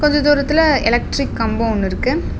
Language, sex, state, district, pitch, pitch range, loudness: Tamil, female, Tamil Nadu, Namakkal, 285 Hz, 230-295 Hz, -16 LUFS